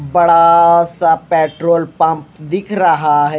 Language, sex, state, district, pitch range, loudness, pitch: Hindi, male, Haryana, Rohtak, 155-170 Hz, -12 LUFS, 165 Hz